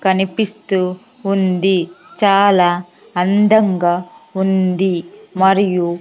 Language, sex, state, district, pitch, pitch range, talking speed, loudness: Telugu, female, Andhra Pradesh, Sri Satya Sai, 190 Hz, 180-200 Hz, 60 wpm, -16 LUFS